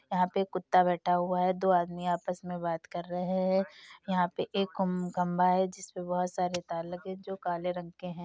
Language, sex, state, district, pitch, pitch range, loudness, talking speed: Hindi, female, Uttar Pradesh, Jyotiba Phule Nagar, 180 Hz, 175-185 Hz, -31 LUFS, 230 wpm